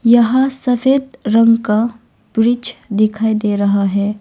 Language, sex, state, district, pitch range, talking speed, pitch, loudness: Hindi, female, Arunachal Pradesh, Longding, 210-245 Hz, 130 wpm, 230 Hz, -15 LUFS